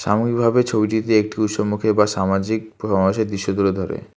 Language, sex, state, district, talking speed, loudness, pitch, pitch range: Bengali, male, West Bengal, Alipurduar, 145 wpm, -19 LUFS, 105 Hz, 100-110 Hz